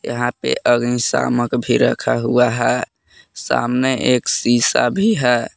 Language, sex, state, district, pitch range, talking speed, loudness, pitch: Hindi, male, Jharkhand, Palamu, 120-125 Hz, 130 wpm, -17 LUFS, 120 Hz